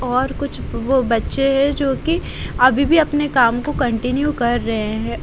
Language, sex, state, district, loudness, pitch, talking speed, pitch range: Hindi, female, Haryana, Jhajjar, -18 LUFS, 260 Hz, 185 wpm, 240-285 Hz